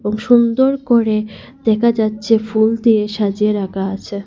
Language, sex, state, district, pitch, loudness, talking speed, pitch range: Bengali, female, Assam, Hailakandi, 220 Hz, -16 LUFS, 125 wpm, 210-230 Hz